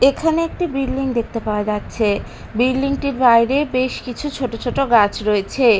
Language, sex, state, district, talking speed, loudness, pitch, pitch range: Bengali, female, Bihar, Katihar, 155 wpm, -19 LUFS, 255 Hz, 230-275 Hz